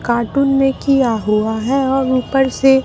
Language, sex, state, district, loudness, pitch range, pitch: Hindi, female, Bihar, Katihar, -15 LUFS, 235-270 Hz, 265 Hz